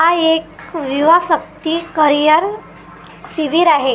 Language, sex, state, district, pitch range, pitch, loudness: Marathi, female, Maharashtra, Gondia, 305-335 Hz, 320 Hz, -14 LUFS